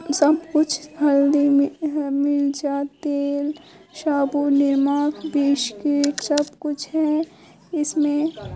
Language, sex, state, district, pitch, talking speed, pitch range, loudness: Hindi, female, Chhattisgarh, Kabirdham, 290 Hz, 100 wpm, 285-305 Hz, -21 LUFS